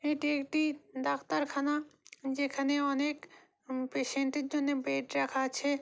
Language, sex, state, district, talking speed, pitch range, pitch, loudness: Bengali, female, West Bengal, North 24 Parganas, 115 wpm, 260-290 Hz, 280 Hz, -33 LUFS